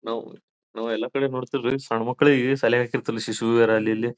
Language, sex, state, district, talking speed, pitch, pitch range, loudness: Kannada, male, Karnataka, Bijapur, 185 wpm, 120 Hz, 115-135 Hz, -23 LUFS